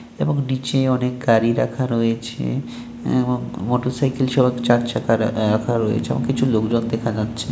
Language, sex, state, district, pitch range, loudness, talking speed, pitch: Bengali, male, West Bengal, Malda, 115-125 Hz, -20 LUFS, 145 wpm, 120 Hz